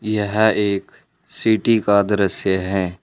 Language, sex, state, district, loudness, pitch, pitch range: Hindi, male, Uttar Pradesh, Saharanpur, -18 LUFS, 100 Hz, 95-110 Hz